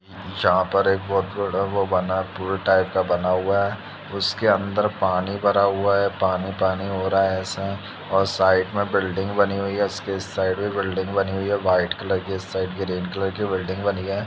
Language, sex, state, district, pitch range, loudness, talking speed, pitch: Hindi, male, Bihar, Purnia, 95-100 Hz, -22 LUFS, 210 wpm, 95 Hz